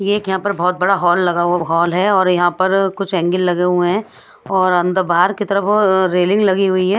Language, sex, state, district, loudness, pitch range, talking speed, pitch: Hindi, female, Odisha, Sambalpur, -15 LUFS, 180-195 Hz, 240 wpm, 185 Hz